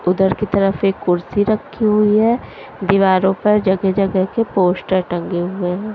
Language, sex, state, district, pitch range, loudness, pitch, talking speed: Hindi, female, Punjab, Pathankot, 185-210 Hz, -17 LUFS, 195 Hz, 170 wpm